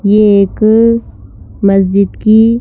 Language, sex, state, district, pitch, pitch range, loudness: Hindi, female, Madhya Pradesh, Bhopal, 210 Hz, 200-225 Hz, -10 LUFS